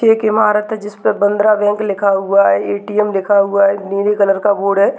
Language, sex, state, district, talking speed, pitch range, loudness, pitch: Hindi, female, Chhattisgarh, Rajnandgaon, 215 wpm, 195-210 Hz, -14 LUFS, 205 Hz